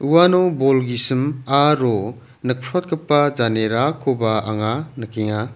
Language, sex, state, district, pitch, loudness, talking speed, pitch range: Garo, male, Meghalaya, South Garo Hills, 130 Hz, -19 LUFS, 85 wpm, 115-145 Hz